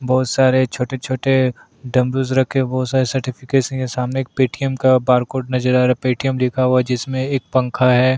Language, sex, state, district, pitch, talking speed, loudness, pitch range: Hindi, male, Uttarakhand, Tehri Garhwal, 130 Hz, 205 wpm, -18 LUFS, 125-130 Hz